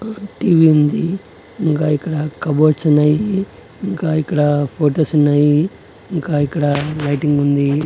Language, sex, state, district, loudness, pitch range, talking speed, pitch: Telugu, male, Andhra Pradesh, Annamaya, -16 LUFS, 145-165 Hz, 115 wpm, 150 Hz